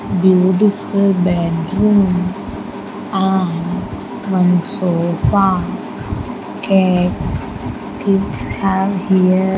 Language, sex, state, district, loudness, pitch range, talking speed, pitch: English, female, Andhra Pradesh, Sri Satya Sai, -16 LUFS, 180-195 Hz, 65 wpm, 190 Hz